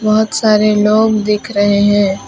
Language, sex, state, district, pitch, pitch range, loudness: Hindi, female, West Bengal, Alipurduar, 210 Hz, 205-215 Hz, -12 LUFS